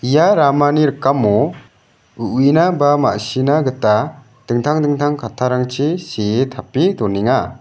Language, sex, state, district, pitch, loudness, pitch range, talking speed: Garo, male, Meghalaya, South Garo Hills, 135 Hz, -16 LUFS, 120-150 Hz, 100 wpm